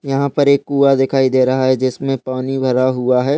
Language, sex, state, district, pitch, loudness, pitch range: Hindi, male, Chhattisgarh, Bastar, 135 Hz, -15 LUFS, 130-140 Hz